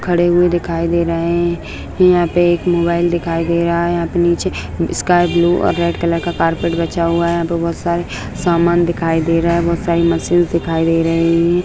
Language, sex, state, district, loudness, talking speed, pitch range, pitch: Hindi, male, Bihar, Begusarai, -15 LUFS, 220 wpm, 170-175 Hz, 170 Hz